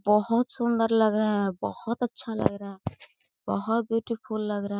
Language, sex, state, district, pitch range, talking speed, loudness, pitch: Hindi, female, Chhattisgarh, Korba, 200-230 Hz, 175 wpm, -27 LUFS, 220 Hz